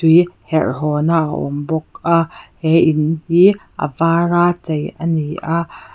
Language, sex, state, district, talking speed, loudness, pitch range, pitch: Mizo, female, Mizoram, Aizawl, 170 wpm, -17 LUFS, 155-170 Hz, 165 Hz